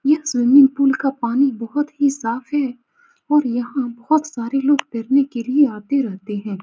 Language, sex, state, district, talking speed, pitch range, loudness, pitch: Hindi, female, Bihar, Saran, 190 wpm, 240-290 Hz, -18 LUFS, 270 Hz